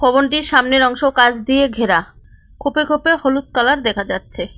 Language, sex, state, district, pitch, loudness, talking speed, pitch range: Bengali, female, West Bengal, Cooch Behar, 270 Hz, -15 LUFS, 155 wpm, 245-285 Hz